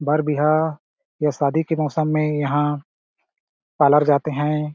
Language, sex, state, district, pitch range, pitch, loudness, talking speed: Hindi, male, Chhattisgarh, Balrampur, 145-155 Hz, 150 Hz, -20 LUFS, 140 wpm